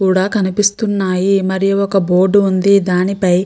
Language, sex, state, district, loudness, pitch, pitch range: Telugu, female, Andhra Pradesh, Chittoor, -14 LUFS, 195 Hz, 185-200 Hz